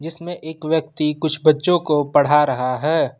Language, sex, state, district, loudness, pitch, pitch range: Hindi, male, Jharkhand, Ranchi, -18 LUFS, 155 Hz, 150-160 Hz